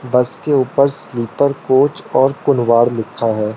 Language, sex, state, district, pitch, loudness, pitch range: Hindi, male, Arunachal Pradesh, Lower Dibang Valley, 130 Hz, -15 LUFS, 115-140 Hz